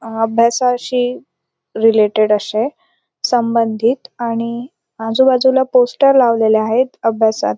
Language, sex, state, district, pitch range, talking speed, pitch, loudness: Marathi, female, Maharashtra, Sindhudurg, 225-255 Hz, 85 wpm, 235 Hz, -15 LUFS